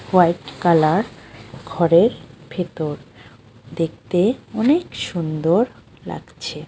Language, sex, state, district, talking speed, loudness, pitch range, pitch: Bengali, female, West Bengal, Kolkata, 70 wpm, -19 LUFS, 135-180 Hz, 165 Hz